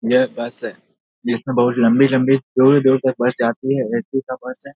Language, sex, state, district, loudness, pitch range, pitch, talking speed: Hindi, male, Bihar, Madhepura, -17 LUFS, 120-135 Hz, 130 Hz, 190 wpm